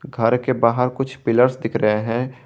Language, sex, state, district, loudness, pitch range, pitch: Hindi, male, Jharkhand, Garhwa, -19 LUFS, 115-130 Hz, 125 Hz